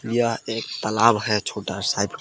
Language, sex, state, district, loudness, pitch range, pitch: Hindi, male, Jharkhand, Palamu, -23 LUFS, 100-115 Hz, 110 Hz